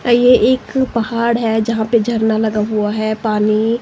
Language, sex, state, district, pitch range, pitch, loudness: Hindi, female, Himachal Pradesh, Shimla, 215-235 Hz, 225 Hz, -15 LUFS